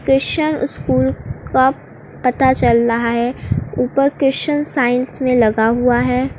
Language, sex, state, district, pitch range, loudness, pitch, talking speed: Hindi, female, Uttar Pradesh, Lucknow, 235-270 Hz, -16 LUFS, 250 Hz, 130 wpm